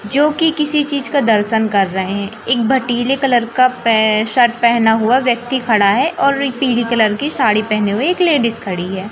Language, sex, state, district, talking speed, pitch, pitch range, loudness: Hindi, male, Madhya Pradesh, Katni, 210 wpm, 235 Hz, 215-270 Hz, -14 LUFS